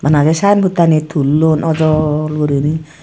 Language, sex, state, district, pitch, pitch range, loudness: Chakma, female, Tripura, Dhalai, 155 Hz, 150-160 Hz, -13 LUFS